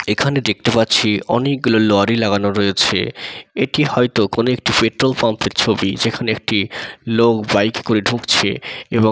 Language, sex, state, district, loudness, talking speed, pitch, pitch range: Bengali, male, West Bengal, Dakshin Dinajpur, -16 LUFS, 140 wpm, 115 Hz, 105-120 Hz